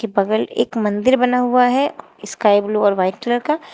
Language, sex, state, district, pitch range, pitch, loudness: Hindi, female, Uttar Pradesh, Shamli, 205-250 Hz, 225 Hz, -17 LUFS